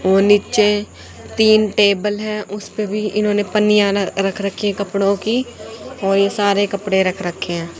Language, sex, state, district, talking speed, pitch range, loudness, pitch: Hindi, female, Haryana, Jhajjar, 145 wpm, 200-210 Hz, -17 LUFS, 205 Hz